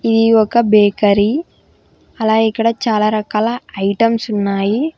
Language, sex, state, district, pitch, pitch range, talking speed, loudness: Telugu, female, Telangana, Hyderabad, 220 Hz, 210-230 Hz, 110 wpm, -15 LUFS